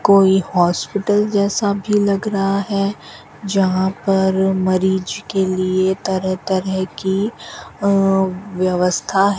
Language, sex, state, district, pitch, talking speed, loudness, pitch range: Hindi, female, Rajasthan, Bikaner, 190 Hz, 115 wpm, -18 LUFS, 185-200 Hz